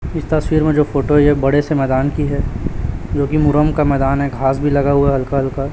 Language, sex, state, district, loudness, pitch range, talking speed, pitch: Hindi, male, Chhattisgarh, Raipur, -16 LUFS, 140-150 Hz, 250 wpm, 140 Hz